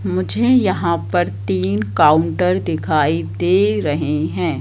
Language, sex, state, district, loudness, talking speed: Hindi, female, Madhya Pradesh, Katni, -17 LUFS, 115 wpm